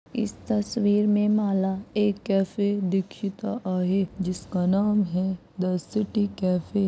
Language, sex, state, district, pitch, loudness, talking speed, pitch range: Hindi, female, Maharashtra, Aurangabad, 200 Hz, -25 LUFS, 130 wpm, 185-210 Hz